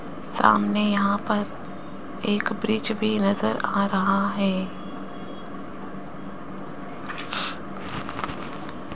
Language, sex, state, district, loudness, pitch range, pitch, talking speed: Hindi, male, Rajasthan, Jaipur, -24 LUFS, 200-215 Hz, 205 Hz, 65 wpm